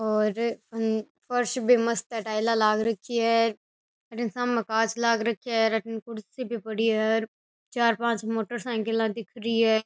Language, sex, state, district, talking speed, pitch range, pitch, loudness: Rajasthani, female, Rajasthan, Nagaur, 175 wpm, 220-235 Hz, 225 Hz, -26 LUFS